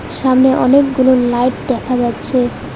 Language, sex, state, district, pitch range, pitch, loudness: Bengali, female, West Bengal, Alipurduar, 245-265 Hz, 255 Hz, -13 LUFS